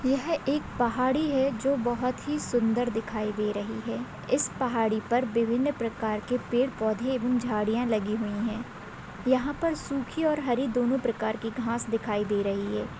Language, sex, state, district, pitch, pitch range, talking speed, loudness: Hindi, female, Maharashtra, Aurangabad, 240 Hz, 220-260 Hz, 175 wpm, -28 LUFS